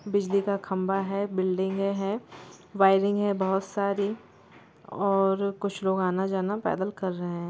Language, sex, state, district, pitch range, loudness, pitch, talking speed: Hindi, female, Bihar, Gopalganj, 190-200 Hz, -27 LUFS, 195 Hz, 150 wpm